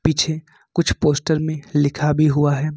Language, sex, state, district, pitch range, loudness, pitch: Hindi, male, Jharkhand, Ranchi, 150-155 Hz, -19 LUFS, 155 Hz